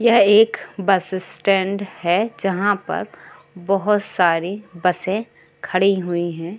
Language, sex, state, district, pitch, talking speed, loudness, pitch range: Hindi, female, Uttar Pradesh, Varanasi, 195 Hz, 120 wpm, -19 LUFS, 180-205 Hz